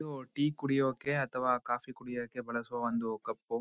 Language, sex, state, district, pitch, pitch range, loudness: Kannada, male, Karnataka, Mysore, 125 Hz, 120-135 Hz, -34 LUFS